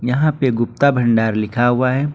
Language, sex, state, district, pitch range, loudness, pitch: Hindi, male, Jharkhand, Ranchi, 115-135 Hz, -17 LUFS, 125 Hz